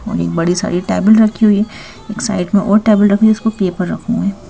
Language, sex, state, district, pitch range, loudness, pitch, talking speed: Hindi, female, Madhya Pradesh, Bhopal, 190-215 Hz, -14 LUFS, 210 Hz, 225 wpm